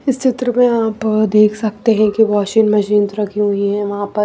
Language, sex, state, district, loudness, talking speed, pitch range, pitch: Hindi, female, Punjab, Pathankot, -15 LUFS, 210 wpm, 205-225 Hz, 215 Hz